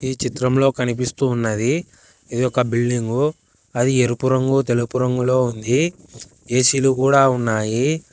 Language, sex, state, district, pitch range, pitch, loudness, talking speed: Telugu, male, Telangana, Hyderabad, 120-135 Hz, 125 Hz, -19 LUFS, 125 wpm